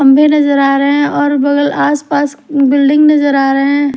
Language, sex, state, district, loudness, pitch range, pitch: Hindi, female, Haryana, Rohtak, -11 LUFS, 280-290 Hz, 285 Hz